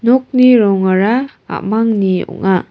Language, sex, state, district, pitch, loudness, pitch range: Garo, female, Meghalaya, West Garo Hills, 210 Hz, -13 LUFS, 190-245 Hz